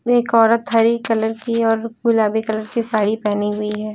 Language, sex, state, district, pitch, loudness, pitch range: Hindi, female, Uttar Pradesh, Lucknow, 225 Hz, -18 LUFS, 215-230 Hz